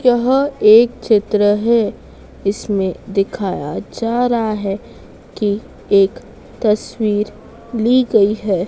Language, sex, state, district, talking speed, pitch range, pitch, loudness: Hindi, female, Madhya Pradesh, Dhar, 105 wpm, 200-235 Hz, 215 Hz, -16 LUFS